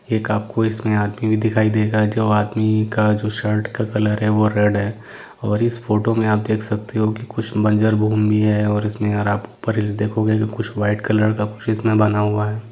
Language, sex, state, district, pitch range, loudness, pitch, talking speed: Hindi, male, Jharkhand, Sahebganj, 105-110 Hz, -19 LUFS, 105 Hz, 210 wpm